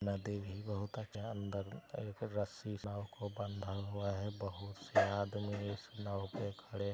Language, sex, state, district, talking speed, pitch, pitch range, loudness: Hindi, male, Bihar, Araria, 175 wpm, 100 Hz, 100-105 Hz, -42 LUFS